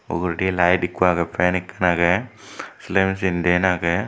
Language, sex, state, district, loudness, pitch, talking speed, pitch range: Chakma, male, Tripura, Dhalai, -20 LUFS, 90 Hz, 160 wpm, 85-95 Hz